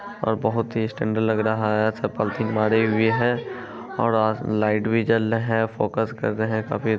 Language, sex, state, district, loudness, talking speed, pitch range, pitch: Hindi, male, Bihar, Araria, -23 LUFS, 170 wpm, 110-115 Hz, 110 Hz